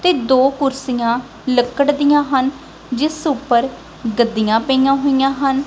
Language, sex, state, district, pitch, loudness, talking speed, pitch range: Punjabi, female, Punjab, Kapurthala, 265 Hz, -17 LUFS, 125 wpm, 240-275 Hz